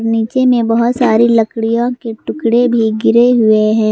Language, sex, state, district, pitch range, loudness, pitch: Hindi, female, Jharkhand, Garhwa, 225-240 Hz, -12 LUFS, 230 Hz